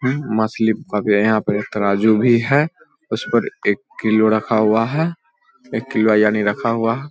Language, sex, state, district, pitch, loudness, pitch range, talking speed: Hindi, male, Bihar, Vaishali, 110 Hz, -18 LUFS, 105-130 Hz, 185 wpm